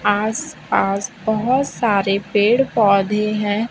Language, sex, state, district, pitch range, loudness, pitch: Hindi, female, Chhattisgarh, Raipur, 200-230 Hz, -18 LUFS, 210 Hz